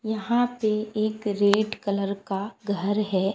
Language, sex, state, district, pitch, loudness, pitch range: Hindi, female, Bihar, West Champaran, 210 Hz, -25 LUFS, 200-215 Hz